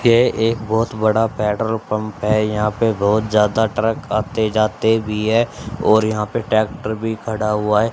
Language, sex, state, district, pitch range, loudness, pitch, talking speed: Hindi, male, Haryana, Charkhi Dadri, 105-110 Hz, -18 LUFS, 110 Hz, 180 wpm